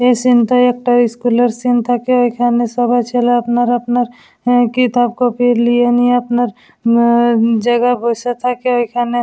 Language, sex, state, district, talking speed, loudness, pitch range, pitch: Bengali, female, West Bengal, Dakshin Dinajpur, 155 wpm, -14 LUFS, 240-245 Hz, 245 Hz